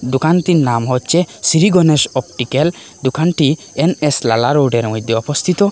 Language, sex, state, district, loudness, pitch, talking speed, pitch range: Bengali, male, Assam, Hailakandi, -14 LUFS, 145 Hz, 125 wpm, 125-170 Hz